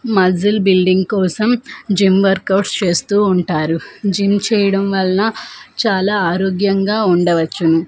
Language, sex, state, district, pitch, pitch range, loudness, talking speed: Telugu, female, Andhra Pradesh, Manyam, 195 Hz, 185-205 Hz, -15 LUFS, 105 wpm